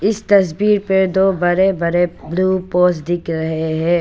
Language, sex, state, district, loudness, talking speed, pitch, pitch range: Hindi, female, Arunachal Pradesh, Papum Pare, -16 LUFS, 165 wpm, 180 Hz, 170-190 Hz